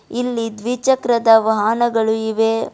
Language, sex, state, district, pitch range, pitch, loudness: Kannada, female, Karnataka, Bidar, 220-240 Hz, 225 Hz, -17 LUFS